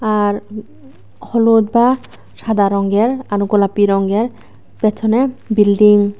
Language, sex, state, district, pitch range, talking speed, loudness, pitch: Bengali, female, Tripura, West Tripura, 205-230 Hz, 105 wpm, -15 LUFS, 210 Hz